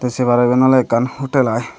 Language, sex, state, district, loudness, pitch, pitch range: Chakma, male, Tripura, Dhalai, -15 LUFS, 125 Hz, 120-130 Hz